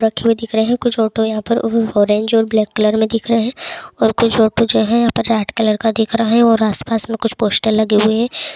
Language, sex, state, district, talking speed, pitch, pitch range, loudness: Hindi, male, Bihar, Begusarai, 265 wpm, 225 Hz, 220-230 Hz, -15 LUFS